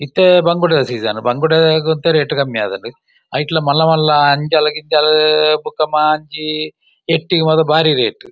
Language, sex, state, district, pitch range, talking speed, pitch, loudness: Tulu, male, Karnataka, Dakshina Kannada, 150-160 Hz, 145 wpm, 155 Hz, -14 LUFS